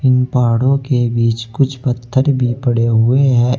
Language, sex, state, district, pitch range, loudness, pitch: Hindi, male, Uttar Pradesh, Saharanpur, 120-130 Hz, -15 LUFS, 125 Hz